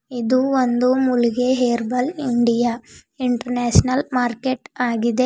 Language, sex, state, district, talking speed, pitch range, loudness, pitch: Kannada, female, Karnataka, Bidar, 90 wpm, 240-255 Hz, -19 LUFS, 250 Hz